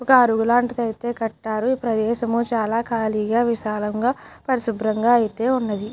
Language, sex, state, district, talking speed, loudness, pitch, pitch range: Telugu, female, Andhra Pradesh, Chittoor, 110 wpm, -21 LUFS, 230 Hz, 220-240 Hz